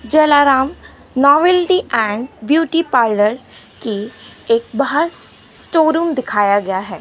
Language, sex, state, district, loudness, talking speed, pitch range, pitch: Hindi, female, Gujarat, Gandhinagar, -15 LUFS, 110 wpm, 225-315 Hz, 260 Hz